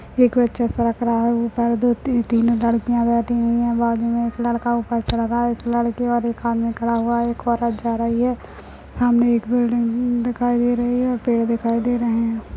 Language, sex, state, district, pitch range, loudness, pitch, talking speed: Hindi, female, Bihar, Jahanabad, 235-240 Hz, -20 LUFS, 235 Hz, 230 wpm